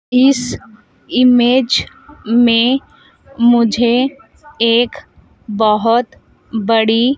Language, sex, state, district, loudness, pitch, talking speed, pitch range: Hindi, female, Madhya Pradesh, Dhar, -14 LUFS, 240 Hz, 60 wpm, 230-255 Hz